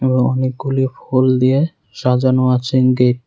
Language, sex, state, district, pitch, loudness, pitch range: Bengali, male, Tripura, West Tripura, 130 Hz, -16 LUFS, 125-130 Hz